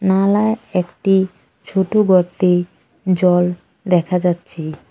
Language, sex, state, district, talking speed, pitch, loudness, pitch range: Bengali, female, West Bengal, Cooch Behar, 85 wpm, 185 Hz, -17 LUFS, 175-195 Hz